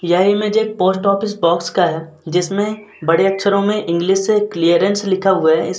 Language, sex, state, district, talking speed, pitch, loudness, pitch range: Hindi, male, Uttar Pradesh, Muzaffarnagar, 205 wpm, 190 Hz, -16 LUFS, 170-205 Hz